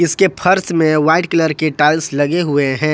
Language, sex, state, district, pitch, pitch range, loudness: Hindi, male, Jharkhand, Ranchi, 160 Hz, 150-170 Hz, -14 LUFS